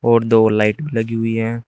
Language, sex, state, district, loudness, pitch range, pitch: Hindi, male, Uttar Pradesh, Shamli, -16 LUFS, 110-115 Hz, 115 Hz